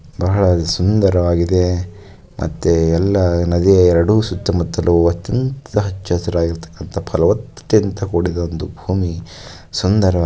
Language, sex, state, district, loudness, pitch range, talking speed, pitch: Kannada, male, Karnataka, Shimoga, -17 LUFS, 85-100 Hz, 70 wpm, 90 Hz